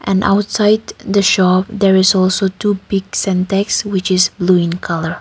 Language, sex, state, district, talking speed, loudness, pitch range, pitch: English, female, Nagaland, Kohima, 175 wpm, -14 LUFS, 185-200 Hz, 195 Hz